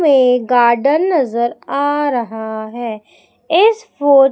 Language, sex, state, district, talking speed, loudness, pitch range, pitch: Hindi, female, Madhya Pradesh, Umaria, 110 wpm, -15 LUFS, 235-290 Hz, 265 Hz